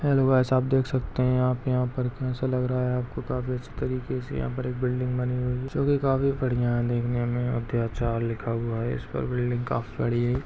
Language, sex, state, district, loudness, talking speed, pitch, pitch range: Hindi, male, Chhattisgarh, Rajnandgaon, -27 LUFS, 225 wpm, 125 Hz, 120-130 Hz